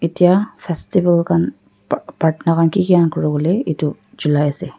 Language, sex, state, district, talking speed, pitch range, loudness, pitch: Nagamese, female, Nagaland, Dimapur, 140 wpm, 150-175 Hz, -17 LUFS, 165 Hz